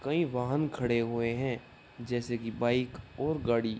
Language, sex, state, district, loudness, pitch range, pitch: Hindi, male, Uttar Pradesh, Gorakhpur, -32 LUFS, 115-130 Hz, 120 Hz